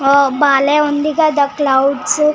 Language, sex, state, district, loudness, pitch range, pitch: Telugu, female, Telangana, Nalgonda, -13 LUFS, 275-300 Hz, 285 Hz